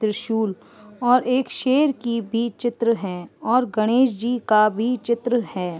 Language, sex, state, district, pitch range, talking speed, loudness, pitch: Hindi, female, Uttar Pradesh, Ghazipur, 215-250 Hz, 155 wpm, -21 LUFS, 235 Hz